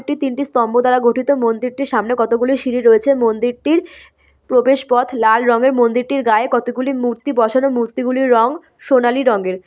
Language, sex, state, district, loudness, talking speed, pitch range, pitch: Bengali, female, West Bengal, Malda, -15 LUFS, 175 wpm, 235-265 Hz, 245 Hz